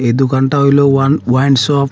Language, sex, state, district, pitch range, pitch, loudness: Bengali, male, Assam, Hailakandi, 130-140 Hz, 135 Hz, -12 LUFS